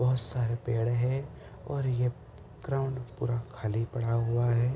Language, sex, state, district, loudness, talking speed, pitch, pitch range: Hindi, male, Uttar Pradesh, Budaun, -31 LUFS, 150 wpm, 120 Hz, 115-130 Hz